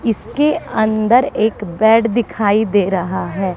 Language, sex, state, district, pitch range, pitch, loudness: Hindi, female, Haryana, Charkhi Dadri, 200-230 Hz, 215 Hz, -16 LUFS